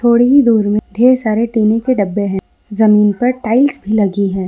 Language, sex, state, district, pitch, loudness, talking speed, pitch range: Hindi, female, Jharkhand, Ranchi, 220 Hz, -13 LUFS, 215 wpm, 205-240 Hz